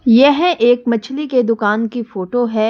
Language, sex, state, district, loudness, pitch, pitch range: Hindi, female, Delhi, New Delhi, -15 LUFS, 240 Hz, 225-260 Hz